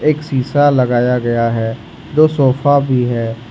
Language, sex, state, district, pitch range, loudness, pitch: Hindi, male, Jharkhand, Ranchi, 120-145 Hz, -14 LUFS, 130 Hz